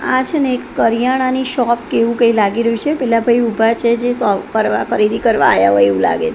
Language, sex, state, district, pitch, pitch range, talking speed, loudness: Gujarati, female, Gujarat, Gandhinagar, 235 Hz, 220-245 Hz, 225 wpm, -14 LUFS